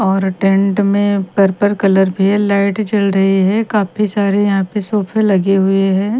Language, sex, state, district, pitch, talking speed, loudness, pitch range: Hindi, female, Haryana, Rohtak, 200 Hz, 185 wpm, -14 LUFS, 195-205 Hz